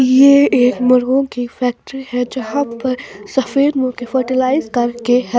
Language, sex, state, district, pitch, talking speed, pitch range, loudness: Hindi, female, Bihar, West Champaran, 255 Hz, 155 wpm, 245-265 Hz, -15 LUFS